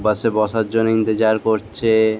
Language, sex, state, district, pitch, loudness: Bengali, male, West Bengal, Jalpaiguri, 110 Hz, -18 LUFS